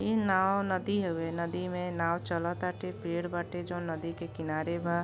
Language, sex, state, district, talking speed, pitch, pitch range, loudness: Bhojpuri, female, Uttar Pradesh, Deoria, 180 wpm, 170 Hz, 165-180 Hz, -32 LUFS